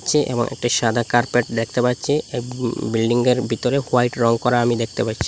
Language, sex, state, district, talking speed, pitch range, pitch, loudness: Bengali, male, Assam, Hailakandi, 195 wpm, 115-125 Hz, 120 Hz, -20 LUFS